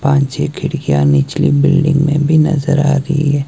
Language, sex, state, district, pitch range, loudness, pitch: Hindi, male, Himachal Pradesh, Shimla, 140-150 Hz, -13 LUFS, 145 Hz